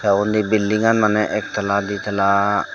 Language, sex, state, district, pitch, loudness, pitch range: Chakma, female, Tripura, Dhalai, 105 Hz, -18 LUFS, 100-105 Hz